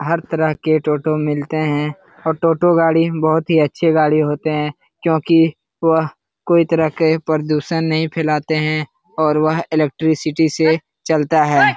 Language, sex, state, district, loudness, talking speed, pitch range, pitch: Hindi, male, Bihar, Lakhisarai, -17 LUFS, 160 wpm, 155-160 Hz, 155 Hz